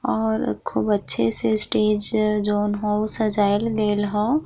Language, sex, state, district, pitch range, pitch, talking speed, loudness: Bhojpuri, female, Bihar, East Champaran, 205-215 Hz, 210 Hz, 135 wpm, -20 LUFS